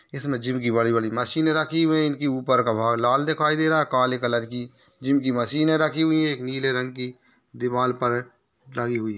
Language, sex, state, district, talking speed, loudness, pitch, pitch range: Hindi, male, Maharashtra, Nagpur, 230 wpm, -23 LUFS, 130 Hz, 120-150 Hz